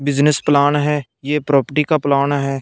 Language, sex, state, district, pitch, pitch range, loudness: Hindi, male, Punjab, Fazilka, 145 Hz, 140-150 Hz, -16 LUFS